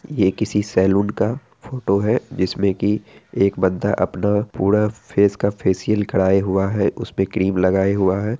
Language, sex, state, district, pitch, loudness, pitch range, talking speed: Hindi, male, Bihar, Araria, 100 Hz, -19 LUFS, 95-105 Hz, 165 wpm